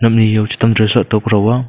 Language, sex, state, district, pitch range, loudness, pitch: Wancho, male, Arunachal Pradesh, Longding, 110-115 Hz, -13 LUFS, 110 Hz